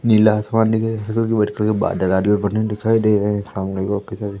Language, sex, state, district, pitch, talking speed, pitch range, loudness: Hindi, male, Madhya Pradesh, Umaria, 105 Hz, 190 wpm, 100-110 Hz, -19 LUFS